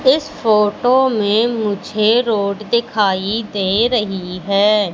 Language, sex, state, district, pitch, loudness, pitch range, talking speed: Hindi, female, Madhya Pradesh, Katni, 215 Hz, -16 LUFS, 200-235 Hz, 110 wpm